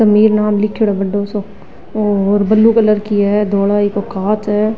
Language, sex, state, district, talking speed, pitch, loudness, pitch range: Rajasthani, female, Rajasthan, Nagaur, 90 wpm, 210 Hz, -14 LUFS, 205-215 Hz